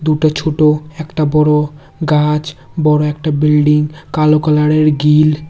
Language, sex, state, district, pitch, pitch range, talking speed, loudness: Bengali, male, Tripura, West Tripura, 150 Hz, 150-155 Hz, 120 wpm, -13 LUFS